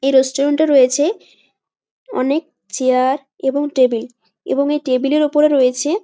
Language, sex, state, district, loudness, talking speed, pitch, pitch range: Bengali, female, West Bengal, Jalpaiguri, -16 LUFS, 140 wpm, 275 Hz, 255-295 Hz